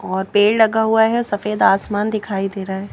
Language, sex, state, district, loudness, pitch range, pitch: Hindi, female, Madhya Pradesh, Bhopal, -17 LUFS, 195-220 Hz, 205 Hz